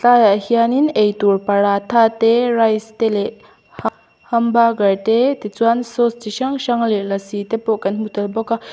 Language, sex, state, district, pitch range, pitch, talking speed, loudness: Mizo, female, Mizoram, Aizawl, 205-235 Hz, 225 Hz, 185 wpm, -17 LUFS